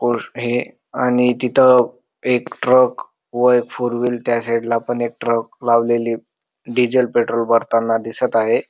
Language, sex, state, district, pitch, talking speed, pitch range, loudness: Marathi, male, Maharashtra, Dhule, 120 Hz, 130 wpm, 115-125 Hz, -18 LUFS